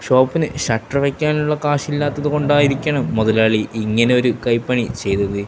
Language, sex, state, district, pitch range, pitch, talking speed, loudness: Malayalam, male, Kerala, Kasaragod, 110-145 Hz, 130 Hz, 100 wpm, -18 LUFS